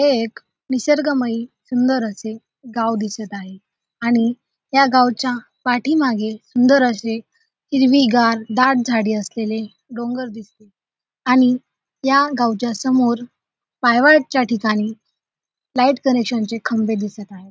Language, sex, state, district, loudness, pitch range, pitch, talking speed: Marathi, female, Maharashtra, Dhule, -18 LUFS, 220-260 Hz, 235 Hz, 110 wpm